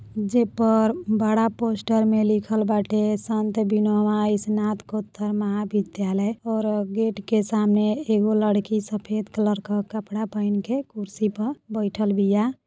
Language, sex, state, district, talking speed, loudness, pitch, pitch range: Bhojpuri, female, Uttar Pradesh, Deoria, 130 wpm, -23 LUFS, 215 Hz, 210-220 Hz